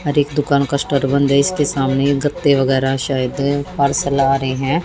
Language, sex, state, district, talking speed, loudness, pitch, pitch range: Hindi, female, Haryana, Jhajjar, 200 wpm, -17 LUFS, 140 Hz, 135-145 Hz